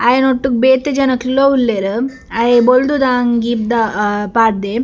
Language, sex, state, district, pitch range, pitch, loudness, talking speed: Tulu, female, Karnataka, Dakshina Kannada, 225-260 Hz, 245 Hz, -14 LUFS, 100 wpm